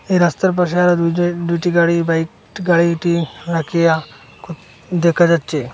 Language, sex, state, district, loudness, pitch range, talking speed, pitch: Bengali, male, Assam, Hailakandi, -16 LUFS, 165-175 Hz, 135 wpm, 170 Hz